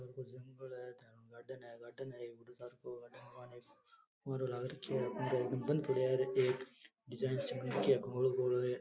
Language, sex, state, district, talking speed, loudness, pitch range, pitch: Rajasthani, male, Rajasthan, Churu, 150 wpm, -38 LUFS, 125-130 Hz, 125 Hz